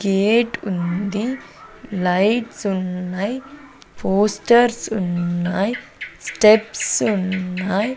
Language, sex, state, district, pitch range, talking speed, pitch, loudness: Telugu, female, Andhra Pradesh, Sri Satya Sai, 185-230 Hz, 60 wpm, 205 Hz, -20 LUFS